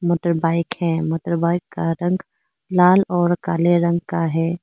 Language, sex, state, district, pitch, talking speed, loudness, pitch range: Hindi, female, Arunachal Pradesh, Lower Dibang Valley, 170 Hz, 140 wpm, -19 LUFS, 165-175 Hz